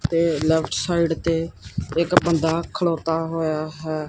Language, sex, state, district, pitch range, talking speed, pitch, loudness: Punjabi, male, Punjab, Kapurthala, 155-170 Hz, 130 wpm, 165 Hz, -22 LUFS